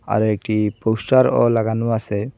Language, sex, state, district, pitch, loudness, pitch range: Bengali, male, Assam, Hailakandi, 110 Hz, -18 LUFS, 105-115 Hz